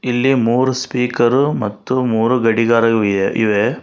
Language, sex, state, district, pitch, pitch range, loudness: Kannada, male, Karnataka, Bangalore, 120 Hz, 115-125 Hz, -16 LUFS